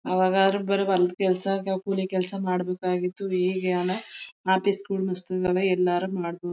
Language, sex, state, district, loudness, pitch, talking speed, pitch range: Kannada, female, Karnataka, Mysore, -25 LUFS, 185 Hz, 130 wpm, 180-195 Hz